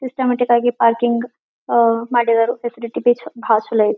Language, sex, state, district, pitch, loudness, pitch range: Kannada, female, Karnataka, Belgaum, 235 Hz, -17 LUFS, 230-245 Hz